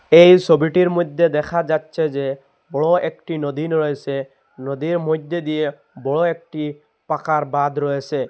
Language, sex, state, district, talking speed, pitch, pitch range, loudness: Bengali, male, Assam, Hailakandi, 130 wpm, 155 Hz, 145-170 Hz, -19 LUFS